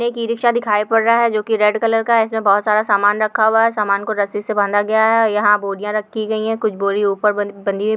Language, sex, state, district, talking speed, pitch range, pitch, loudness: Hindi, female, Uttar Pradesh, Hamirpur, 280 wpm, 205-225 Hz, 215 Hz, -16 LUFS